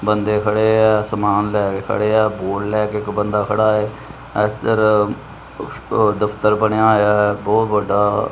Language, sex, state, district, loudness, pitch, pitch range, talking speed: Punjabi, male, Punjab, Kapurthala, -17 LUFS, 105 Hz, 105-110 Hz, 145 wpm